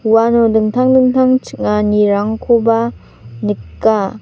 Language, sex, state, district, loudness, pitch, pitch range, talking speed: Garo, female, Meghalaya, North Garo Hills, -14 LUFS, 220 Hz, 205-235 Hz, 70 wpm